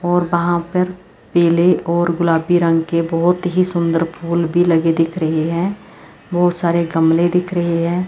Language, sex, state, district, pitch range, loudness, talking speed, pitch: Hindi, female, Chandigarh, Chandigarh, 165-175 Hz, -16 LUFS, 170 wpm, 170 Hz